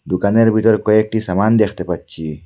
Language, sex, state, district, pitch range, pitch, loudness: Bengali, male, Assam, Hailakandi, 90-110 Hz, 105 Hz, -15 LUFS